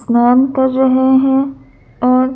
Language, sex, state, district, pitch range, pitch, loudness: Hindi, female, Madhya Pradesh, Bhopal, 255-265 Hz, 260 Hz, -13 LUFS